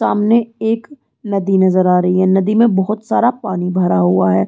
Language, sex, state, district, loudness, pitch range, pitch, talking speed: Hindi, female, Chhattisgarh, Rajnandgaon, -14 LUFS, 180-225 Hz, 195 Hz, 200 wpm